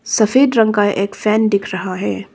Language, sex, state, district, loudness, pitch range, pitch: Hindi, female, Arunachal Pradesh, Papum Pare, -15 LUFS, 195-220 Hz, 205 Hz